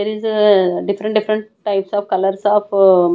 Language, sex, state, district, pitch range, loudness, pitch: English, female, Punjab, Kapurthala, 195-215 Hz, -16 LUFS, 205 Hz